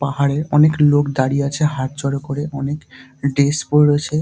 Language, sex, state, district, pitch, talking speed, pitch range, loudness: Bengali, male, West Bengal, Dakshin Dinajpur, 140 Hz, 170 wpm, 140-150 Hz, -17 LUFS